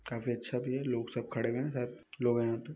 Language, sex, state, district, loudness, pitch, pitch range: Hindi, male, Bihar, Muzaffarpur, -35 LUFS, 120 Hz, 115-125 Hz